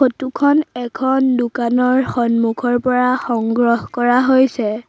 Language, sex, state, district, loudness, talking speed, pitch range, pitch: Assamese, female, Assam, Sonitpur, -16 LUFS, 110 wpm, 235-260 Hz, 245 Hz